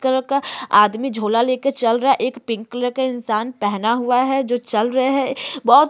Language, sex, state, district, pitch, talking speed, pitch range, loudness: Hindi, female, Uttarakhand, Tehri Garhwal, 245 Hz, 235 wpm, 230-265 Hz, -19 LUFS